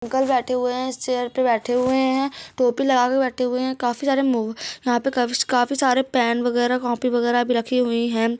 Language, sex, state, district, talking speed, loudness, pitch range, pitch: Hindi, female, Bihar, Darbhanga, 200 wpm, -21 LUFS, 240-260 Hz, 250 Hz